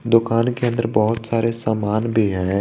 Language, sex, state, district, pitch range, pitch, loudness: Hindi, male, Jharkhand, Garhwa, 110-115 Hz, 115 Hz, -20 LUFS